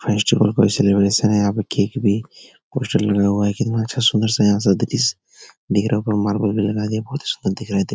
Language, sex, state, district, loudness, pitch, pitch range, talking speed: Hindi, male, Bihar, Jahanabad, -19 LUFS, 105 Hz, 100-110 Hz, 160 wpm